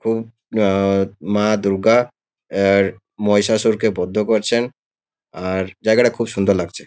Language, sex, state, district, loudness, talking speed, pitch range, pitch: Bengali, male, West Bengal, Kolkata, -18 LUFS, 115 wpm, 95-115 Hz, 105 Hz